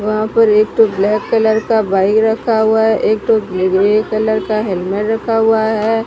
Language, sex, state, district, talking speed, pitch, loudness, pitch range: Hindi, female, Odisha, Sambalpur, 200 wpm, 220 Hz, -14 LUFS, 210-220 Hz